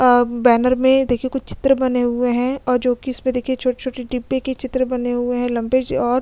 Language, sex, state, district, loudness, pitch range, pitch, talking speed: Hindi, female, Chhattisgarh, Kabirdham, -19 LUFS, 245-260 Hz, 250 Hz, 220 wpm